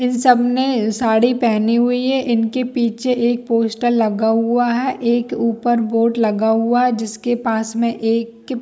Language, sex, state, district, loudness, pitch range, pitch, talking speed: Hindi, female, Chhattisgarh, Bilaspur, -17 LUFS, 225-245 Hz, 235 Hz, 160 wpm